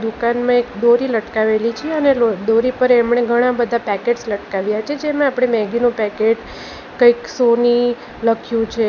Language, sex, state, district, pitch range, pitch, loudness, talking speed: Gujarati, female, Gujarat, Valsad, 225-245 Hz, 235 Hz, -17 LUFS, 160 wpm